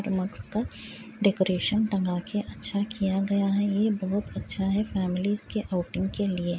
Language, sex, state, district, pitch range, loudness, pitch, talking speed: Hindi, female, Bihar, Muzaffarpur, 190-205 Hz, -27 LUFS, 200 Hz, 165 wpm